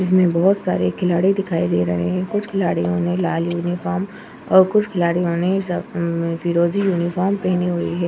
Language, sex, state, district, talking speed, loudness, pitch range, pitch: Hindi, female, Uttar Pradesh, Jyotiba Phule Nagar, 170 wpm, -19 LUFS, 170-190 Hz, 180 Hz